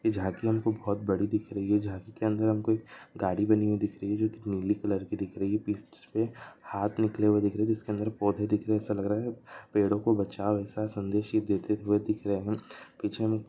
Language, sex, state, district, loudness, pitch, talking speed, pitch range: Hindi, male, Andhra Pradesh, Anantapur, -30 LUFS, 105 Hz, 185 wpm, 100-110 Hz